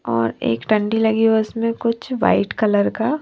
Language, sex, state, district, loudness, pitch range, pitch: Hindi, female, Maharashtra, Washim, -19 LUFS, 200-230 Hz, 220 Hz